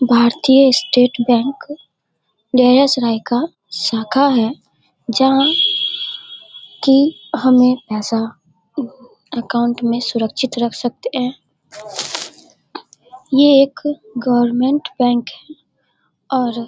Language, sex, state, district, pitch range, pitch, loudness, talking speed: Hindi, female, Bihar, Darbhanga, 235-280 Hz, 250 Hz, -15 LUFS, 85 wpm